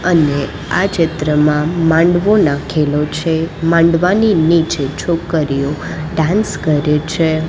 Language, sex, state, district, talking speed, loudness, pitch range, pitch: Gujarati, female, Gujarat, Gandhinagar, 95 wpm, -14 LUFS, 150-170 Hz, 160 Hz